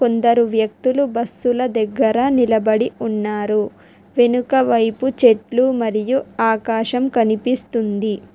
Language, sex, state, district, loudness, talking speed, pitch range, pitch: Telugu, female, Telangana, Hyderabad, -18 LUFS, 85 wpm, 220-250 Hz, 235 Hz